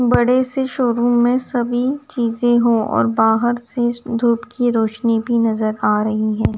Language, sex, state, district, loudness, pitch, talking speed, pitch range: Hindi, female, Punjab, Kapurthala, -17 LUFS, 240 Hz, 165 wpm, 225-245 Hz